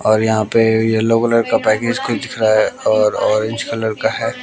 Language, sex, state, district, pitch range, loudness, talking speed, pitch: Hindi, male, Bihar, West Champaran, 110-115 Hz, -16 LUFS, 205 wpm, 110 Hz